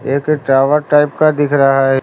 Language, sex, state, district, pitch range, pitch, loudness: Hindi, male, Uttar Pradesh, Lucknow, 135-150 Hz, 145 Hz, -12 LUFS